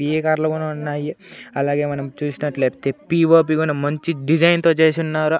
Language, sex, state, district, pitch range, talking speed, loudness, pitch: Telugu, male, Andhra Pradesh, Annamaya, 145-160 Hz, 145 wpm, -19 LUFS, 155 Hz